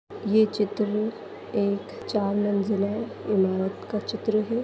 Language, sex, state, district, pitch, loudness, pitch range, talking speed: Hindi, female, Bihar, Purnia, 210 Hz, -26 LUFS, 200-215 Hz, 115 wpm